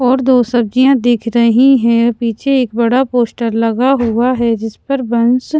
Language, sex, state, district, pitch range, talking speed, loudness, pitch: Hindi, female, Punjab, Pathankot, 235-255 Hz, 170 wpm, -13 LUFS, 240 Hz